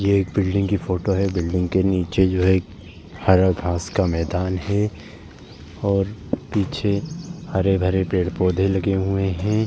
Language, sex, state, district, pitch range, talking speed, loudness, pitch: Hindi, male, Uttar Pradesh, Jalaun, 90-100 Hz, 145 wpm, -21 LUFS, 95 Hz